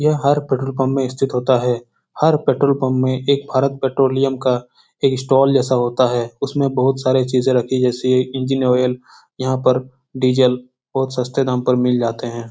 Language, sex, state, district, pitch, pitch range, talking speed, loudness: Hindi, male, Uttar Pradesh, Etah, 130 Hz, 125-135 Hz, 185 wpm, -18 LUFS